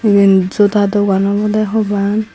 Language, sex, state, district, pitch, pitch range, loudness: Chakma, female, Tripura, Dhalai, 205 Hz, 200-210 Hz, -13 LUFS